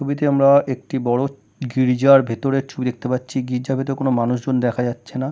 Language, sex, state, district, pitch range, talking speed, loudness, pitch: Bengali, male, West Bengal, Kolkata, 125-135 Hz, 170 wpm, -19 LUFS, 130 Hz